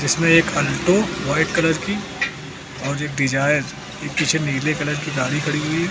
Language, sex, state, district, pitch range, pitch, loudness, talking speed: Hindi, male, Uttar Pradesh, Lucknow, 145-165 Hz, 150 Hz, -20 LUFS, 160 wpm